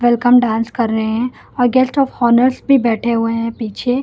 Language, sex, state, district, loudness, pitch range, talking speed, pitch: Hindi, female, Delhi, New Delhi, -15 LUFS, 230-250 Hz, 210 wpm, 240 Hz